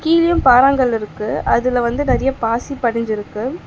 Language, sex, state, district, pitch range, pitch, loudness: Tamil, female, Tamil Nadu, Chennai, 230-275 Hz, 250 Hz, -16 LUFS